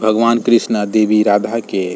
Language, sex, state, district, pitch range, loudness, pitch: Bhojpuri, male, Bihar, East Champaran, 105-115 Hz, -14 LUFS, 110 Hz